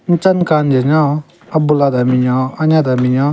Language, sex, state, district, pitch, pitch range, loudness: Rengma, male, Nagaland, Kohima, 150 Hz, 130-155 Hz, -14 LUFS